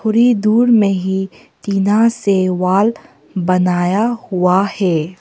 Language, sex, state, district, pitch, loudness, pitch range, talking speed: Hindi, female, Arunachal Pradesh, Papum Pare, 195 Hz, -15 LUFS, 185-220 Hz, 115 wpm